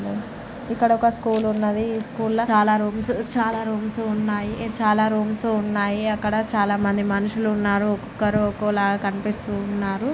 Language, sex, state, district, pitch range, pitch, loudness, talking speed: Telugu, female, Andhra Pradesh, Srikakulam, 205-225 Hz, 215 Hz, -22 LUFS, 100 wpm